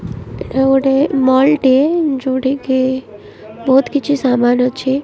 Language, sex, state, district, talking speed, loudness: Odia, female, Odisha, Malkangiri, 105 wpm, -14 LUFS